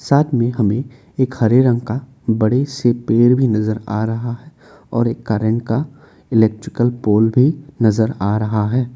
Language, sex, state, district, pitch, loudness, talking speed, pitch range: Hindi, male, Assam, Kamrup Metropolitan, 120 Hz, -17 LUFS, 175 wpm, 110-130 Hz